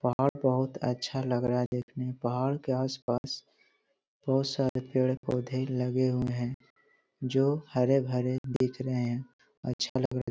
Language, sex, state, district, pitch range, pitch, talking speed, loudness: Hindi, male, Bihar, Jahanabad, 125-130 Hz, 130 Hz, 140 wpm, -31 LUFS